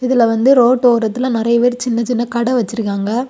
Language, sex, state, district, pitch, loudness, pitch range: Tamil, female, Tamil Nadu, Kanyakumari, 240 Hz, -14 LUFS, 230-245 Hz